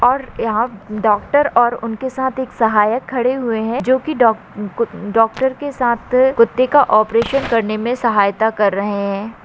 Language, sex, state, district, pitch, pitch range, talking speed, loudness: Hindi, female, Maharashtra, Aurangabad, 230 Hz, 215-260 Hz, 165 wpm, -16 LUFS